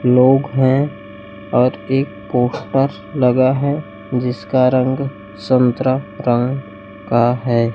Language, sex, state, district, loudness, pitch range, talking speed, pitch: Hindi, male, Chhattisgarh, Raipur, -17 LUFS, 120-135 Hz, 100 wpm, 125 Hz